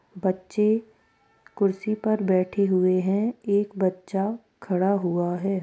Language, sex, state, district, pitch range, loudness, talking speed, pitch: Hindi, female, Bihar, Gopalganj, 185-215 Hz, -25 LUFS, 115 wpm, 195 Hz